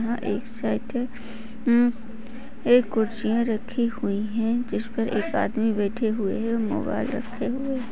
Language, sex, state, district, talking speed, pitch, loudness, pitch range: Hindi, female, Bihar, Jamui, 135 wpm, 230 Hz, -25 LUFS, 225-240 Hz